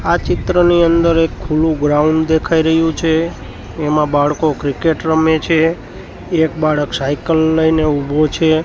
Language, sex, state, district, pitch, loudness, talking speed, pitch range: Gujarati, male, Gujarat, Gandhinagar, 160 Hz, -14 LUFS, 140 wpm, 150-160 Hz